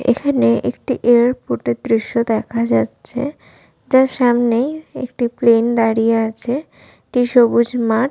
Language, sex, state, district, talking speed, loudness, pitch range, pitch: Bengali, female, West Bengal, Malda, 110 wpm, -17 LUFS, 225-250 Hz, 235 Hz